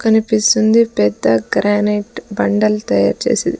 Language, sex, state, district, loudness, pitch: Telugu, female, Andhra Pradesh, Sri Satya Sai, -15 LUFS, 205 Hz